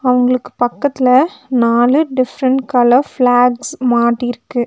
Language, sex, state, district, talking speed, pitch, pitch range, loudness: Tamil, female, Tamil Nadu, Nilgiris, 90 wpm, 250 Hz, 245-265 Hz, -14 LUFS